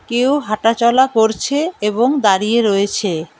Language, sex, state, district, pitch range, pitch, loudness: Bengali, female, West Bengal, Alipurduar, 210-255 Hz, 225 Hz, -15 LUFS